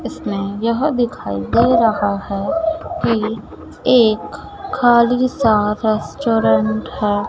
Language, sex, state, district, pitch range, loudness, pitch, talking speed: Hindi, female, Madhya Pradesh, Dhar, 200-240 Hz, -17 LUFS, 220 Hz, 100 wpm